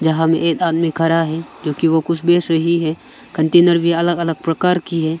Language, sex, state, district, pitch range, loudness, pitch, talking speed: Hindi, male, Arunachal Pradesh, Longding, 160-170 Hz, -16 LUFS, 165 Hz, 220 wpm